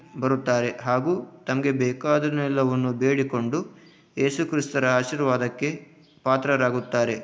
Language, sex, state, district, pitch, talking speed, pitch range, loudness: Kannada, male, Karnataka, Dharwad, 135 Hz, 75 wpm, 125-150 Hz, -24 LUFS